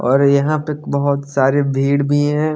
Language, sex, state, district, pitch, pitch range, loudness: Hindi, male, Haryana, Jhajjar, 140 Hz, 140-145 Hz, -16 LUFS